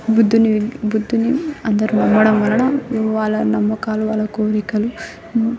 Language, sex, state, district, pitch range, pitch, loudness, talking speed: Telugu, female, Telangana, Nalgonda, 215-230 Hz, 220 Hz, -17 LUFS, 105 wpm